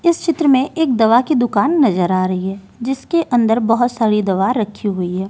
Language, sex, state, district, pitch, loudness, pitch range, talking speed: Hindi, female, Delhi, New Delhi, 235 Hz, -16 LUFS, 200-270 Hz, 215 wpm